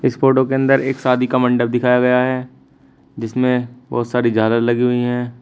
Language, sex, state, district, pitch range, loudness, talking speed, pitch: Hindi, male, Uttar Pradesh, Shamli, 120-130 Hz, -17 LUFS, 200 wpm, 125 Hz